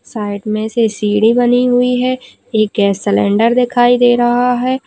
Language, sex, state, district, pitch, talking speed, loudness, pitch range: Hindi, female, Chhattisgarh, Raigarh, 240 Hz, 170 wpm, -13 LUFS, 215-250 Hz